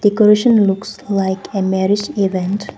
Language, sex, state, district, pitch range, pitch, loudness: English, female, Arunachal Pradesh, Papum Pare, 190-210 Hz, 200 Hz, -16 LUFS